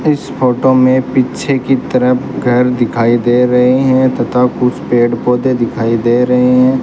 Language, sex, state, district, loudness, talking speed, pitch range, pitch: Hindi, male, Rajasthan, Bikaner, -12 LUFS, 165 wpm, 125-130 Hz, 125 Hz